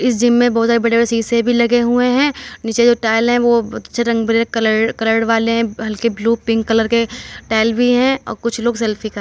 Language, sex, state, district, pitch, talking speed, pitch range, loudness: Hindi, male, Uttar Pradesh, Muzaffarnagar, 230 Hz, 250 wpm, 225-240 Hz, -15 LUFS